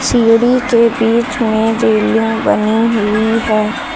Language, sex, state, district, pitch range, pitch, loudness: Hindi, female, Uttar Pradesh, Lucknow, 210-230 Hz, 225 Hz, -13 LUFS